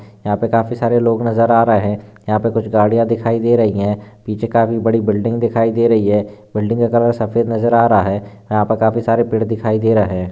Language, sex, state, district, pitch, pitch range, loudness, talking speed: Hindi, male, Maharashtra, Chandrapur, 115 Hz, 105-115 Hz, -15 LUFS, 245 wpm